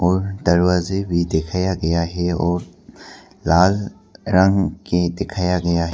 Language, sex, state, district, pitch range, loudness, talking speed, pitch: Hindi, male, Arunachal Pradesh, Papum Pare, 85-95 Hz, -19 LUFS, 130 wpm, 90 Hz